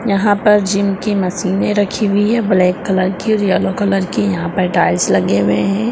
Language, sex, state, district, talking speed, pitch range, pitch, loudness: Hindi, female, Bihar, Purnia, 215 wpm, 185-205 Hz, 195 Hz, -15 LUFS